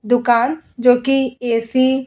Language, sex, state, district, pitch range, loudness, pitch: Hindi, female, Uttar Pradesh, Budaun, 240-265 Hz, -16 LUFS, 250 Hz